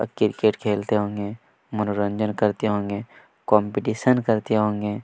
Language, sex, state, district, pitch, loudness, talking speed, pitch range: Hindi, male, Chhattisgarh, Kabirdham, 105 Hz, -23 LUFS, 120 wpm, 105-110 Hz